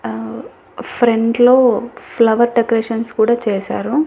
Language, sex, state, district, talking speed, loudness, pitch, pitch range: Telugu, female, Andhra Pradesh, Annamaya, 105 wpm, -15 LUFS, 230 Hz, 220-240 Hz